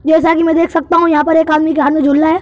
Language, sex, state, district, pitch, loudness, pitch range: Hindi, male, Madhya Pradesh, Bhopal, 320 Hz, -11 LUFS, 305-330 Hz